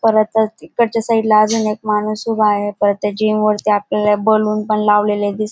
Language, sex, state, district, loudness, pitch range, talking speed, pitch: Marathi, female, Maharashtra, Dhule, -16 LUFS, 210-220 Hz, 220 wpm, 215 Hz